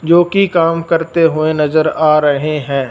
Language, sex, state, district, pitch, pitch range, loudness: Hindi, male, Punjab, Fazilka, 155 Hz, 150-165 Hz, -13 LUFS